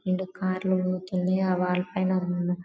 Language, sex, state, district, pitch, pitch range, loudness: Telugu, female, Telangana, Karimnagar, 185 Hz, 180-185 Hz, -27 LUFS